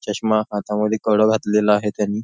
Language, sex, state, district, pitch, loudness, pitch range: Marathi, male, Maharashtra, Nagpur, 105 Hz, -19 LUFS, 105-110 Hz